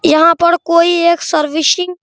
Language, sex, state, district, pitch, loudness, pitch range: Hindi, male, Bihar, Araria, 340 Hz, -11 LUFS, 320-345 Hz